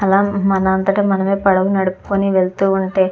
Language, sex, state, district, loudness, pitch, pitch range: Telugu, female, Andhra Pradesh, Chittoor, -16 LUFS, 195 Hz, 190-195 Hz